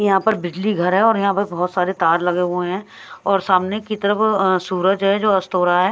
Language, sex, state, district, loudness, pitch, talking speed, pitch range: Hindi, female, Punjab, Pathankot, -18 LUFS, 190 Hz, 265 wpm, 180-200 Hz